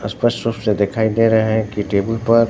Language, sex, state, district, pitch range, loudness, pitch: Hindi, male, Bihar, Katihar, 105-115 Hz, -17 LUFS, 110 Hz